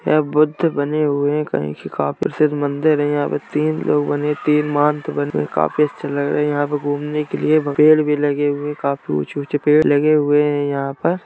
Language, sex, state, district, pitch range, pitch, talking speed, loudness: Hindi, male, Uttar Pradesh, Jalaun, 145-150 Hz, 145 Hz, 250 wpm, -18 LUFS